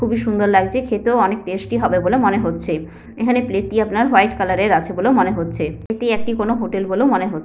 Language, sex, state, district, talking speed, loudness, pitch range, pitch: Bengali, female, West Bengal, Paschim Medinipur, 225 wpm, -18 LUFS, 195-240 Hz, 220 Hz